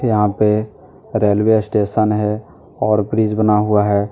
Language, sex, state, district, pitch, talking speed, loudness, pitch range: Hindi, male, Jharkhand, Deoghar, 105 Hz, 145 wpm, -16 LUFS, 105-110 Hz